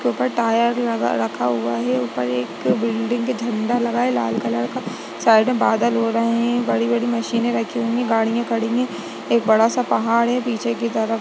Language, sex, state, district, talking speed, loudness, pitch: Hindi, female, Uttarakhand, Uttarkashi, 215 wpm, -20 LUFS, 230 Hz